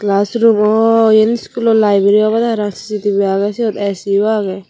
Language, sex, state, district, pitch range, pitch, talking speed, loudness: Chakma, female, Tripura, Unakoti, 200-225 Hz, 210 Hz, 155 wpm, -13 LUFS